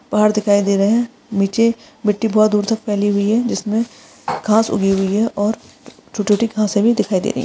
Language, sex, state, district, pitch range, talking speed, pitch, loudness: Hindi, female, Maharashtra, Solapur, 205-225 Hz, 215 wpm, 215 Hz, -17 LUFS